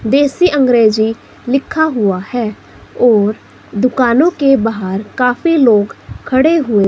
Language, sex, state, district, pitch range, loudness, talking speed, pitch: Hindi, female, Himachal Pradesh, Shimla, 215-275 Hz, -13 LUFS, 115 wpm, 245 Hz